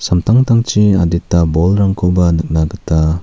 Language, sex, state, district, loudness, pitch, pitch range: Garo, male, Meghalaya, South Garo Hills, -13 LUFS, 90 Hz, 80-100 Hz